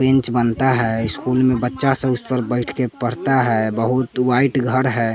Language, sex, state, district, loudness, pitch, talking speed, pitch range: Hindi, male, Bihar, West Champaran, -18 LUFS, 125 Hz, 195 wpm, 120-130 Hz